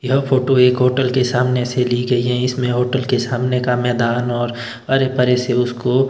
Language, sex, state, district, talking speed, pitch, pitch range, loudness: Hindi, male, Himachal Pradesh, Shimla, 205 wpm, 125 Hz, 125-130 Hz, -17 LUFS